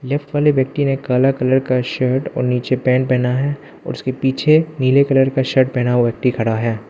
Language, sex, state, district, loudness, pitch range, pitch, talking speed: Hindi, male, Arunachal Pradesh, Lower Dibang Valley, -17 LUFS, 125-140 Hz, 130 Hz, 215 wpm